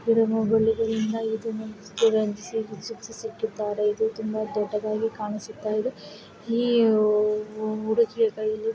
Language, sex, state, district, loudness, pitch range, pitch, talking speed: Kannada, female, Karnataka, Mysore, -25 LUFS, 215-225 Hz, 220 Hz, 75 wpm